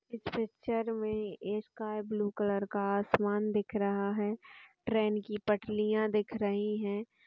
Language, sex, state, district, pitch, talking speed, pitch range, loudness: Hindi, female, Uttar Pradesh, Etah, 210 Hz, 150 wpm, 205-215 Hz, -33 LUFS